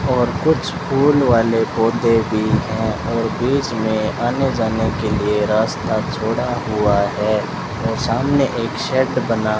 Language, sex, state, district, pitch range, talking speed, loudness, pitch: Hindi, male, Rajasthan, Bikaner, 110-130 Hz, 135 wpm, -18 LUFS, 115 Hz